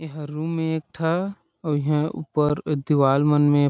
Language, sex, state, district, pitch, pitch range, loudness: Chhattisgarhi, male, Chhattisgarh, Sarguja, 150 Hz, 145-160 Hz, -23 LUFS